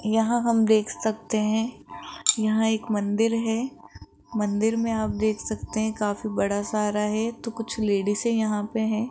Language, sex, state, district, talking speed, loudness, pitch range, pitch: Hindi, female, Rajasthan, Jaipur, 165 wpm, -25 LUFS, 210-225 Hz, 220 Hz